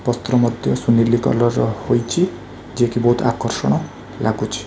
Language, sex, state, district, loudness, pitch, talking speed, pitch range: Odia, male, Odisha, Khordha, -18 LUFS, 120 Hz, 115 wpm, 115-120 Hz